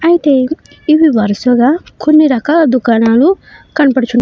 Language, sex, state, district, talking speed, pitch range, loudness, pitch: Telugu, female, Karnataka, Bellary, 115 wpm, 245-315 Hz, -11 LUFS, 280 Hz